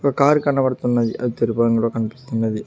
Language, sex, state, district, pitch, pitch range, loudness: Telugu, male, Telangana, Mahabubabad, 120 Hz, 115-135 Hz, -19 LUFS